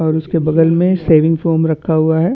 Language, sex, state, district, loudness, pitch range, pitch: Hindi, male, Chhattisgarh, Bastar, -14 LUFS, 160-165 Hz, 160 Hz